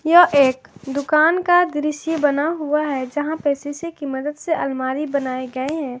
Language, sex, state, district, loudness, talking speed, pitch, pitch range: Hindi, female, Jharkhand, Ranchi, -20 LUFS, 180 wpm, 295 Hz, 275-315 Hz